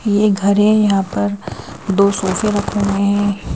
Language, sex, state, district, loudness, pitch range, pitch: Hindi, female, Madhya Pradesh, Bhopal, -16 LUFS, 195-205 Hz, 200 Hz